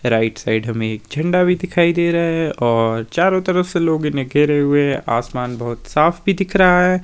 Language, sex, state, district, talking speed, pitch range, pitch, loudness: Hindi, male, Himachal Pradesh, Shimla, 215 wpm, 120-180 Hz, 150 Hz, -17 LUFS